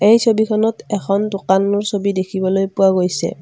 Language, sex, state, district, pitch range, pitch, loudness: Assamese, female, Assam, Kamrup Metropolitan, 190-215 Hz, 200 Hz, -17 LUFS